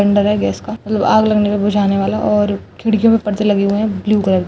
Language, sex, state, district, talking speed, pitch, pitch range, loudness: Chhattisgarhi, female, Chhattisgarh, Rajnandgaon, 270 wpm, 205 Hz, 200-215 Hz, -15 LUFS